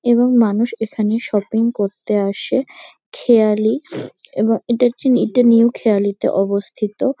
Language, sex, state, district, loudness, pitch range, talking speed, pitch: Bengali, female, West Bengal, North 24 Parganas, -17 LUFS, 210-245 Hz, 110 wpm, 225 Hz